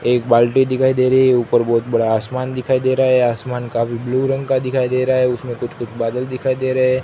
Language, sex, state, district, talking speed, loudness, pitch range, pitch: Hindi, male, Gujarat, Gandhinagar, 195 wpm, -17 LUFS, 120-130 Hz, 130 Hz